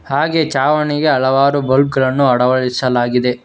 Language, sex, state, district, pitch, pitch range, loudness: Kannada, male, Karnataka, Bangalore, 130 Hz, 125-145 Hz, -14 LUFS